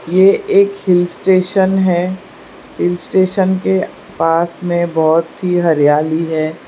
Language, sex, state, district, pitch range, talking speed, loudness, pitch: Hindi, female, Gujarat, Valsad, 165-190 Hz, 125 wpm, -14 LUFS, 175 Hz